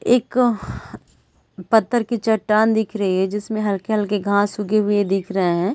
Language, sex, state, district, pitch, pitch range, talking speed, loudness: Hindi, female, Chhattisgarh, Raigarh, 210 Hz, 200-220 Hz, 155 wpm, -19 LUFS